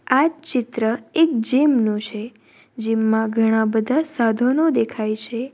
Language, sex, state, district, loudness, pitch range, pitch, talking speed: Gujarati, female, Gujarat, Valsad, -20 LUFS, 220-265 Hz, 230 Hz, 140 wpm